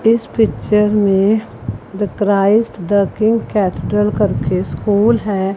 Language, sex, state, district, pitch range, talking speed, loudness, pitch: Hindi, female, Chandigarh, Chandigarh, 195-215 Hz, 120 wpm, -15 LUFS, 205 Hz